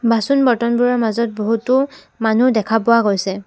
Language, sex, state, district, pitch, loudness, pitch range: Assamese, female, Assam, Sonitpur, 230 Hz, -16 LUFS, 220-245 Hz